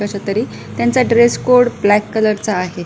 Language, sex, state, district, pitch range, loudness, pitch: Marathi, female, Maharashtra, Pune, 205-235 Hz, -14 LUFS, 215 Hz